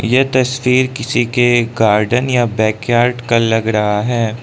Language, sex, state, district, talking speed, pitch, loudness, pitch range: Hindi, male, Arunachal Pradesh, Lower Dibang Valley, 150 wpm, 120 Hz, -14 LUFS, 115-125 Hz